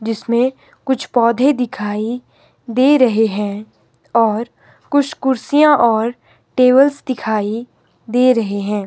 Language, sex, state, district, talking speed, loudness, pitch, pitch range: Hindi, male, Himachal Pradesh, Shimla, 110 wpm, -16 LUFS, 240 Hz, 220-265 Hz